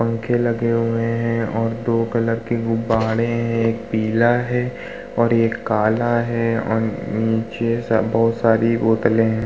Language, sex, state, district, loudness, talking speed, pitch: Hindi, male, Uttar Pradesh, Muzaffarnagar, -19 LUFS, 150 wpm, 115 Hz